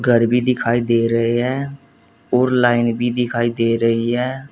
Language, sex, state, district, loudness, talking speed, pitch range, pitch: Hindi, male, Uttar Pradesh, Saharanpur, -18 LUFS, 175 wpm, 115-125 Hz, 120 Hz